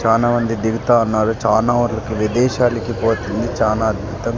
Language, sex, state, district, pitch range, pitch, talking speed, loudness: Telugu, male, Andhra Pradesh, Sri Satya Sai, 110-120 Hz, 115 Hz, 150 wpm, -17 LUFS